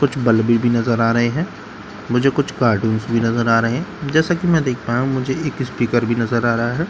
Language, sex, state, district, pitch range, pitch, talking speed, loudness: Hindi, male, Bihar, Katihar, 115-135 Hz, 120 Hz, 270 wpm, -18 LUFS